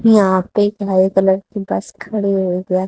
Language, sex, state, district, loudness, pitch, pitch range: Hindi, female, Haryana, Charkhi Dadri, -16 LUFS, 190 Hz, 185-205 Hz